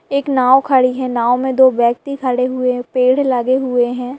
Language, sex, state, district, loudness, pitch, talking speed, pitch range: Hindi, female, Bihar, Saharsa, -15 LUFS, 255 Hz, 215 wpm, 250-265 Hz